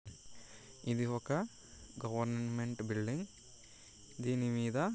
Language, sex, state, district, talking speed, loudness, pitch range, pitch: Telugu, male, Andhra Pradesh, Guntur, 75 wpm, -38 LUFS, 110-125 Hz, 120 Hz